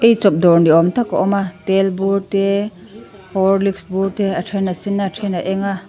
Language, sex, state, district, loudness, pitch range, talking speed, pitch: Mizo, female, Mizoram, Aizawl, -17 LUFS, 190-200 Hz, 245 wpm, 195 Hz